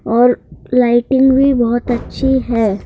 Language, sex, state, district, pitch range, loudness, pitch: Hindi, male, Madhya Pradesh, Bhopal, 235-265 Hz, -14 LUFS, 245 Hz